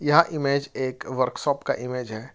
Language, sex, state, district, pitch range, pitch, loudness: Hindi, male, Jharkhand, Ranchi, 125-150 Hz, 135 Hz, -25 LUFS